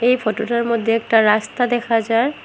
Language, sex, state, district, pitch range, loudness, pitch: Bengali, female, Assam, Hailakandi, 225-240 Hz, -18 LUFS, 230 Hz